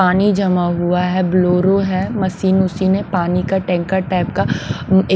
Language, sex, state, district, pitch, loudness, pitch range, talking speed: Hindi, female, Punjab, Pathankot, 185 Hz, -16 LUFS, 180-190 Hz, 150 wpm